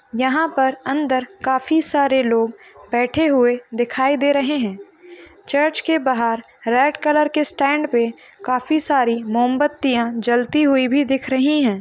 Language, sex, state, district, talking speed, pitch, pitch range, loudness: Hindi, female, Bihar, Kishanganj, 140 wpm, 270 Hz, 245-295 Hz, -18 LUFS